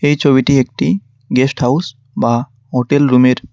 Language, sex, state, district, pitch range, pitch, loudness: Bengali, male, West Bengal, Cooch Behar, 125-140 Hz, 130 Hz, -14 LUFS